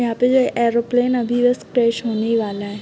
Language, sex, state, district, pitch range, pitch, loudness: Hindi, female, Uttar Pradesh, Gorakhpur, 230-245 Hz, 235 Hz, -18 LUFS